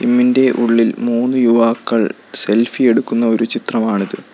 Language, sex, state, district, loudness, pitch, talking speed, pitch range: Malayalam, male, Kerala, Kollam, -15 LUFS, 115 Hz, 125 wpm, 115-120 Hz